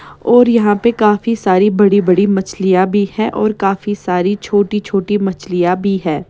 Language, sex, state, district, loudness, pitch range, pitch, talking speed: Hindi, female, Maharashtra, Mumbai Suburban, -14 LUFS, 190-210 Hz, 200 Hz, 160 wpm